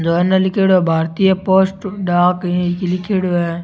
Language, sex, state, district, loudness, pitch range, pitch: Rajasthani, male, Rajasthan, Churu, -16 LUFS, 175-190 Hz, 180 Hz